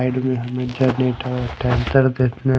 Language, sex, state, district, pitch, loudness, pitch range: Hindi, male, Odisha, Malkangiri, 125 Hz, -20 LUFS, 125-130 Hz